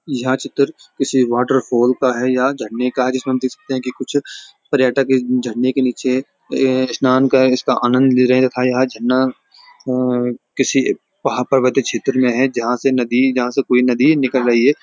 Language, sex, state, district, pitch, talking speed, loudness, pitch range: Hindi, male, Uttarakhand, Uttarkashi, 130 Hz, 185 wpm, -16 LUFS, 125-130 Hz